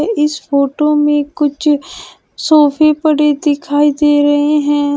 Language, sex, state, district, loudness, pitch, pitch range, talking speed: Hindi, female, Uttar Pradesh, Shamli, -13 LUFS, 295 Hz, 290-300 Hz, 120 wpm